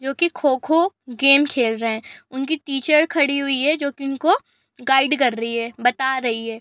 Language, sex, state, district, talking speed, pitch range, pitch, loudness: Hindi, female, Uttar Pradesh, Gorakhpur, 190 wpm, 245-295 Hz, 275 Hz, -19 LUFS